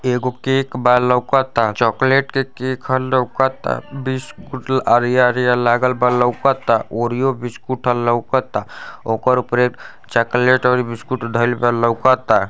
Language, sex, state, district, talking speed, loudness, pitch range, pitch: Bhojpuri, male, Uttar Pradesh, Ghazipur, 140 wpm, -17 LUFS, 120-130 Hz, 125 Hz